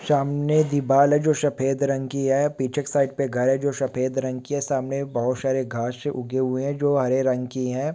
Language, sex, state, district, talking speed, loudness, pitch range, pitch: Hindi, male, West Bengal, Malda, 205 wpm, -23 LUFS, 130-145 Hz, 135 Hz